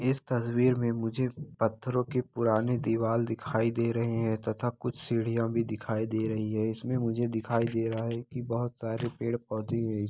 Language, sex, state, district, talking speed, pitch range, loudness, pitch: Hindi, male, Bihar, Araria, 185 wpm, 115-120 Hz, -31 LUFS, 115 Hz